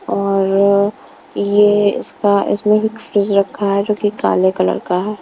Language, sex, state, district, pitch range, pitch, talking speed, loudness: Hindi, female, Punjab, Kapurthala, 200-210 Hz, 205 Hz, 160 wpm, -15 LUFS